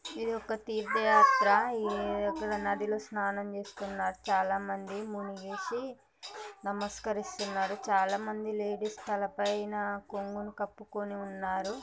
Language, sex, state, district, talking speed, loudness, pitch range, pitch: Telugu, female, Telangana, Nalgonda, 90 wpm, -32 LUFS, 200-215 Hz, 205 Hz